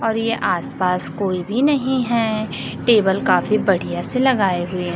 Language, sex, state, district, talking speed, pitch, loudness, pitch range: Hindi, female, Chhattisgarh, Raipur, 155 wpm, 215 Hz, -18 LUFS, 185-235 Hz